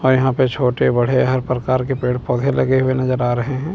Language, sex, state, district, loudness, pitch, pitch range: Hindi, male, Chandigarh, Chandigarh, -18 LUFS, 130 Hz, 125-130 Hz